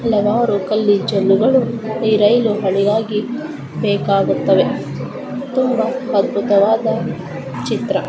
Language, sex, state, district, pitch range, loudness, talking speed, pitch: Kannada, female, Karnataka, Dharwad, 205-235 Hz, -17 LUFS, 75 wpm, 215 Hz